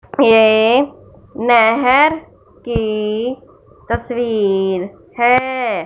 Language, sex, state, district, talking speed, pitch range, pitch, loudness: Hindi, male, Punjab, Fazilka, 50 wpm, 220-255 Hz, 235 Hz, -15 LUFS